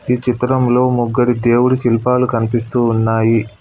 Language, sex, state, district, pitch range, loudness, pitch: Telugu, male, Telangana, Hyderabad, 115-125 Hz, -15 LUFS, 120 Hz